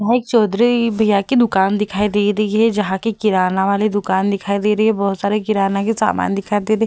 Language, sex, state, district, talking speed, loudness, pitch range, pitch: Hindi, female, Bihar, Vaishali, 255 wpm, -17 LUFS, 200-220 Hz, 210 Hz